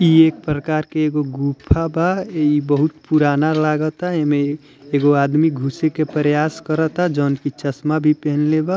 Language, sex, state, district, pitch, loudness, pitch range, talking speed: Bhojpuri, male, Bihar, Muzaffarpur, 150 Hz, -18 LUFS, 145-155 Hz, 165 wpm